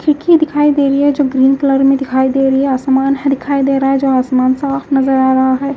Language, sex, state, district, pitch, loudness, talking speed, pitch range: Hindi, female, Haryana, Jhajjar, 275 Hz, -12 LUFS, 270 wpm, 265-280 Hz